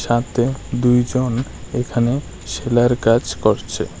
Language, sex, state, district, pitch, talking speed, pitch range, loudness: Bengali, male, Tripura, West Tripura, 120 Hz, 90 wpm, 120-125 Hz, -19 LUFS